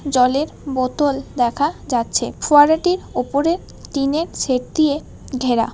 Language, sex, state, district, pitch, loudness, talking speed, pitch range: Bengali, female, West Bengal, Kolkata, 280 Hz, -19 LUFS, 105 wpm, 255-300 Hz